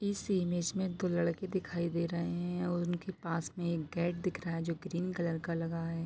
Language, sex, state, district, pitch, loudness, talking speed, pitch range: Hindi, female, Jharkhand, Sahebganj, 175 Hz, -35 LUFS, 230 wpm, 170-180 Hz